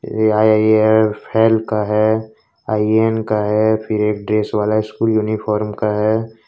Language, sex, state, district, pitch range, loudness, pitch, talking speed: Hindi, male, Jharkhand, Ranchi, 105-110 Hz, -16 LUFS, 110 Hz, 130 wpm